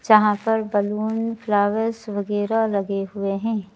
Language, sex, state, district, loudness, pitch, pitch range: Hindi, female, Madhya Pradesh, Bhopal, -22 LUFS, 210 Hz, 205-220 Hz